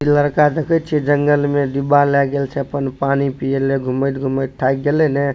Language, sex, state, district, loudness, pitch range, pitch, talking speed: Maithili, male, Bihar, Supaul, -17 LUFS, 135-145 Hz, 140 Hz, 200 wpm